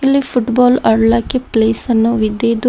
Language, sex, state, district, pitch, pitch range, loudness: Kannada, female, Karnataka, Bidar, 235 Hz, 225-250 Hz, -14 LUFS